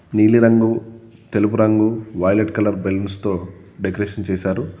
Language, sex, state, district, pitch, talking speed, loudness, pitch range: Telugu, male, Telangana, Komaram Bheem, 105 Hz, 125 wpm, -18 LUFS, 95-110 Hz